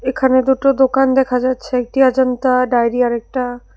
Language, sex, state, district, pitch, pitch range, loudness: Bengali, female, Tripura, West Tripura, 255 Hz, 250-265 Hz, -15 LUFS